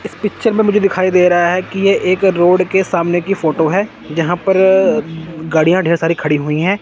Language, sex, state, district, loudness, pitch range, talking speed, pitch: Hindi, male, Chandigarh, Chandigarh, -14 LUFS, 165-190 Hz, 230 wpm, 180 Hz